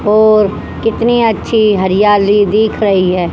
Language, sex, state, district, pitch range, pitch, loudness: Hindi, female, Haryana, Charkhi Dadri, 200-220 Hz, 210 Hz, -11 LUFS